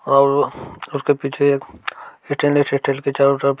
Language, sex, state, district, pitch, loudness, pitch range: Hindi, male, Uttar Pradesh, Varanasi, 140 Hz, -19 LUFS, 140-145 Hz